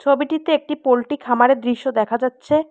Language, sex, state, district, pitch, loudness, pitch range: Bengali, female, West Bengal, Alipurduar, 265 Hz, -19 LUFS, 245-300 Hz